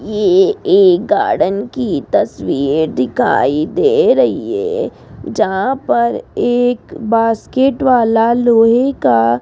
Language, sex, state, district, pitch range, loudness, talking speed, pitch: Hindi, female, Rajasthan, Jaipur, 220-365 Hz, -14 LUFS, 110 wpm, 245 Hz